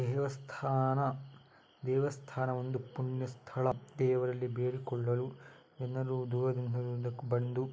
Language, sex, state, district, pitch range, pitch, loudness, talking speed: Kannada, male, Karnataka, Dakshina Kannada, 125-130 Hz, 130 Hz, -35 LUFS, 80 wpm